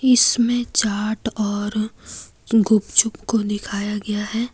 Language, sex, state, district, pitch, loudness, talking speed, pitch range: Hindi, female, Jharkhand, Deoghar, 215 Hz, -20 LUFS, 105 wpm, 210-230 Hz